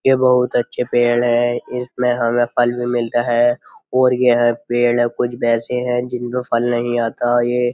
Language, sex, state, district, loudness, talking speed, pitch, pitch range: Hindi, male, Uttar Pradesh, Jyotiba Phule Nagar, -17 LUFS, 170 wpm, 120 Hz, 120-125 Hz